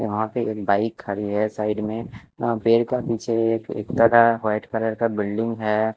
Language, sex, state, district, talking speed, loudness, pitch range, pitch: Hindi, male, Chandigarh, Chandigarh, 190 wpm, -22 LUFS, 105-115 Hz, 110 Hz